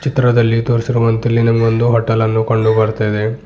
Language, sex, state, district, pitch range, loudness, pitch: Kannada, male, Karnataka, Bidar, 110-115 Hz, -14 LUFS, 115 Hz